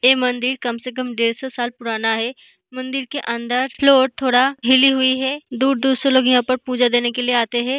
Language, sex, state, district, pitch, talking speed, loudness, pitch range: Hindi, female, Bihar, East Champaran, 255 Hz, 225 wpm, -18 LUFS, 240-265 Hz